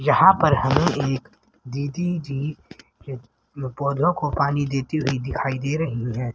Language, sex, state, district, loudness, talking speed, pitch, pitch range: Hindi, female, Haryana, Rohtak, -22 LUFS, 150 wpm, 140 Hz, 130-150 Hz